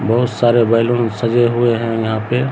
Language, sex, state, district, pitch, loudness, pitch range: Hindi, male, Bihar, Samastipur, 120 Hz, -15 LUFS, 115-120 Hz